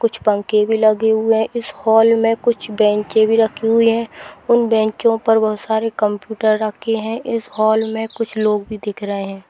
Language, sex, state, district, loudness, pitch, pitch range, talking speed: Hindi, female, Bihar, Sitamarhi, -17 LUFS, 220 Hz, 215-225 Hz, 210 wpm